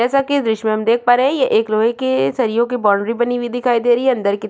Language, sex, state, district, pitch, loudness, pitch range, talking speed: Hindi, female, Chhattisgarh, Kabirdham, 240 Hz, -16 LUFS, 220-245 Hz, 295 wpm